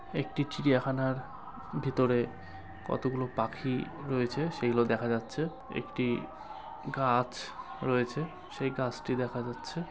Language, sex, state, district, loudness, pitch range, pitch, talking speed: Bengali, male, West Bengal, Kolkata, -32 LUFS, 120-135 Hz, 130 Hz, 105 wpm